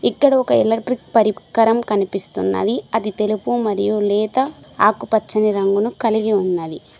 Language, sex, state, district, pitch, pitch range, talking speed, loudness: Telugu, female, Telangana, Mahabubabad, 215 Hz, 200-225 Hz, 110 wpm, -18 LUFS